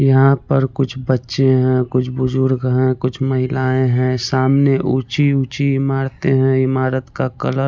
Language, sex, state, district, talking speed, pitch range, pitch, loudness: Hindi, male, Chandigarh, Chandigarh, 150 wpm, 130-135 Hz, 130 Hz, -17 LUFS